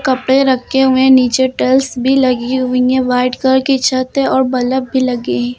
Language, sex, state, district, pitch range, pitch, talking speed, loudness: Hindi, female, Uttar Pradesh, Lucknow, 250-265 Hz, 260 Hz, 215 wpm, -13 LUFS